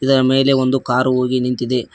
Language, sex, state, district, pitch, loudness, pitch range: Kannada, male, Karnataka, Koppal, 130 Hz, -16 LUFS, 125-135 Hz